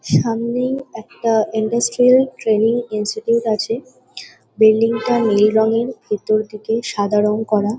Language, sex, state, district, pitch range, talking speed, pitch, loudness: Bengali, female, West Bengal, Kolkata, 215-235 Hz, 115 wpm, 225 Hz, -17 LUFS